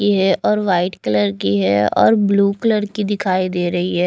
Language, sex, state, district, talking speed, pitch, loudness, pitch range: Hindi, female, Chandigarh, Chandigarh, 205 wpm, 185 Hz, -17 LUFS, 175-205 Hz